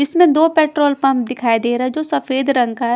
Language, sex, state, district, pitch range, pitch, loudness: Hindi, female, Punjab, Kapurthala, 245-300 Hz, 270 Hz, -16 LUFS